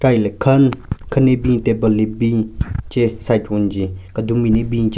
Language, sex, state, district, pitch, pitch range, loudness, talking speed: Rengma, male, Nagaland, Kohima, 115 Hz, 110-120 Hz, -17 LUFS, 205 wpm